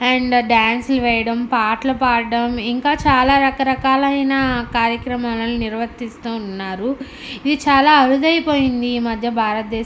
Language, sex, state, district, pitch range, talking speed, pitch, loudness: Telugu, female, Andhra Pradesh, Anantapur, 230-270 Hz, 110 wpm, 245 Hz, -17 LUFS